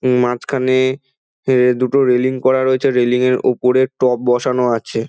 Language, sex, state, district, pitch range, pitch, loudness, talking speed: Bengali, male, West Bengal, Dakshin Dinajpur, 125-130 Hz, 130 Hz, -15 LUFS, 140 wpm